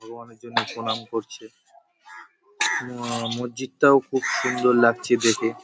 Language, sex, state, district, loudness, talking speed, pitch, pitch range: Bengali, male, West Bengal, Paschim Medinipur, -23 LUFS, 150 wpm, 120 Hz, 115-125 Hz